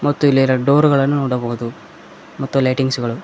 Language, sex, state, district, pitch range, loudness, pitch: Kannada, male, Karnataka, Koppal, 125-140 Hz, -16 LUFS, 135 Hz